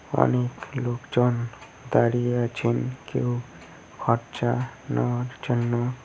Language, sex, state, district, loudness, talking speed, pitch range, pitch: Bengali, male, West Bengal, Cooch Behar, -26 LUFS, 80 wpm, 115-125 Hz, 120 Hz